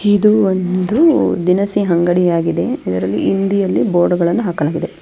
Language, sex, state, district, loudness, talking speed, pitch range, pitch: Kannada, female, Karnataka, Bangalore, -15 LUFS, 110 wpm, 170-200 Hz, 180 Hz